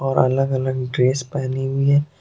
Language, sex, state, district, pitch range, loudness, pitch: Hindi, male, Jharkhand, Deoghar, 130-135 Hz, -20 LUFS, 135 Hz